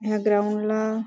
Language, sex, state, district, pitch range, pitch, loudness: Marathi, female, Maharashtra, Nagpur, 210-220 Hz, 215 Hz, -23 LUFS